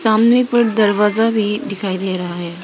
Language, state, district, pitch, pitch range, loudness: Hindi, Arunachal Pradesh, Papum Pare, 210 Hz, 190-225 Hz, -16 LUFS